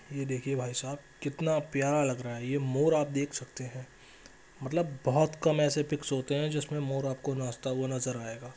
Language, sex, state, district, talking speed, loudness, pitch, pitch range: Hindi, male, Jharkhand, Jamtara, 195 wpm, -31 LUFS, 140 Hz, 130-150 Hz